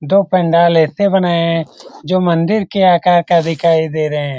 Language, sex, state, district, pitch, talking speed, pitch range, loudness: Hindi, male, Bihar, Lakhisarai, 170 Hz, 190 wpm, 165-185 Hz, -13 LUFS